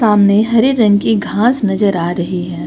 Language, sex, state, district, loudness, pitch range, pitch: Hindi, female, Uttar Pradesh, Lucknow, -13 LUFS, 180-220 Hz, 205 Hz